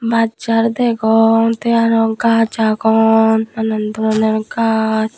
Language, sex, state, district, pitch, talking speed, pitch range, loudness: Chakma, female, Tripura, Unakoti, 225 Hz, 115 wpm, 220-230 Hz, -14 LUFS